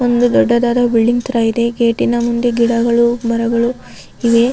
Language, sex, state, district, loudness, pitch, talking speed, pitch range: Kannada, female, Karnataka, Raichur, -14 LUFS, 235 Hz, 160 wpm, 235-240 Hz